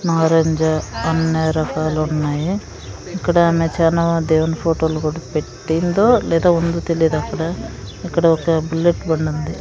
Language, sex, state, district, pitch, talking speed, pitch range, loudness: Telugu, female, Andhra Pradesh, Sri Satya Sai, 165 Hz, 125 wpm, 160-170 Hz, -18 LUFS